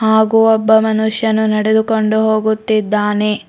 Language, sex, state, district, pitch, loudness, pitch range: Kannada, female, Karnataka, Bidar, 220 Hz, -13 LUFS, 215-220 Hz